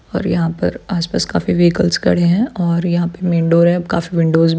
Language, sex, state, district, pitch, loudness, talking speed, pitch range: Hindi, female, Bihar, Supaul, 170 Hz, -16 LUFS, 220 wpm, 170-175 Hz